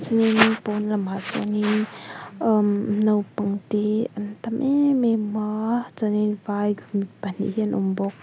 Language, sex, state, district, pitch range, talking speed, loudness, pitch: Mizo, female, Mizoram, Aizawl, 205-225 Hz, 140 wpm, -23 LUFS, 210 Hz